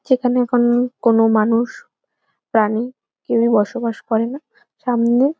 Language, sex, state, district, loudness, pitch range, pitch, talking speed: Bengali, female, West Bengal, Jhargram, -18 LUFS, 230-250 Hz, 240 Hz, 120 wpm